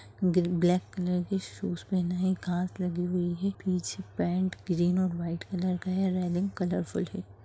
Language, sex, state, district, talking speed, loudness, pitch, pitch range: Bhojpuri, female, Bihar, Saran, 170 wpm, -30 LUFS, 180 Hz, 175-185 Hz